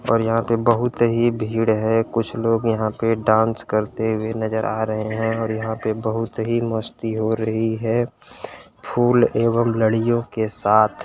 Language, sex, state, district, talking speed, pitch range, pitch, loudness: Hindi, male, Uttar Pradesh, Gorakhpur, 170 wpm, 110-115 Hz, 115 Hz, -21 LUFS